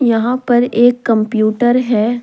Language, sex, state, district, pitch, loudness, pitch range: Hindi, female, Jharkhand, Deoghar, 240 Hz, -13 LUFS, 225-245 Hz